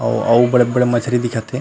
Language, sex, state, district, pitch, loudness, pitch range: Chhattisgarhi, male, Chhattisgarh, Rajnandgaon, 120 Hz, -15 LUFS, 115-125 Hz